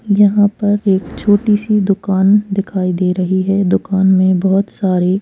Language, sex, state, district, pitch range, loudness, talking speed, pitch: Hindi, female, Chhattisgarh, Kabirdham, 190-205 Hz, -14 LUFS, 160 wpm, 195 Hz